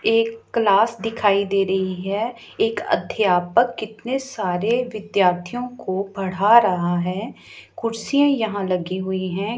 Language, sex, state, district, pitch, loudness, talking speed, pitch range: Hindi, female, Punjab, Pathankot, 210 Hz, -21 LUFS, 125 wpm, 190-235 Hz